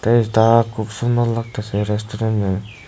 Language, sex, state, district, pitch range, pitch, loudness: Bengali, male, Tripura, West Tripura, 105-115 Hz, 110 Hz, -19 LUFS